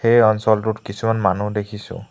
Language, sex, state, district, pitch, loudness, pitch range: Assamese, male, Assam, Hailakandi, 110 Hz, -19 LUFS, 105-115 Hz